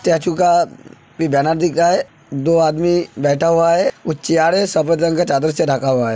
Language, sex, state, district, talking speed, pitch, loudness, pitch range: Hindi, male, Uttar Pradesh, Hamirpur, 175 wpm, 165 Hz, -16 LUFS, 145-175 Hz